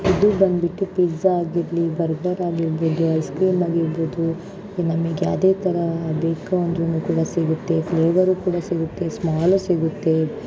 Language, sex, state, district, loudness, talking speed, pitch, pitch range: Kannada, female, Karnataka, Shimoga, -21 LUFS, 120 wpm, 170 Hz, 165-180 Hz